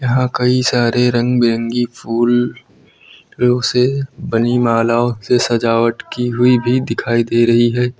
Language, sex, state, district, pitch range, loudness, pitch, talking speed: Hindi, male, Uttar Pradesh, Lucknow, 115-125 Hz, -15 LUFS, 120 Hz, 135 wpm